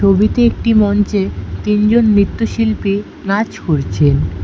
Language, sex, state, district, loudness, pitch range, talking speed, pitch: Bengali, female, West Bengal, Alipurduar, -14 LUFS, 155-215 Hz, 95 wpm, 205 Hz